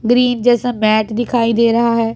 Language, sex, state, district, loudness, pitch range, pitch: Hindi, female, Punjab, Pathankot, -14 LUFS, 230-245 Hz, 235 Hz